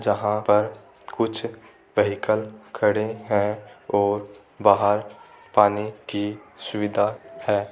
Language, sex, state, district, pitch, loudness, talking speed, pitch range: Hindi, male, Rajasthan, Churu, 105 Hz, -23 LUFS, 95 wpm, 105-110 Hz